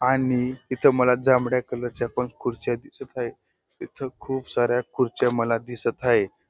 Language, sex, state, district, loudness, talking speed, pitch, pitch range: Marathi, male, Maharashtra, Dhule, -24 LUFS, 150 wpm, 125 Hz, 120-130 Hz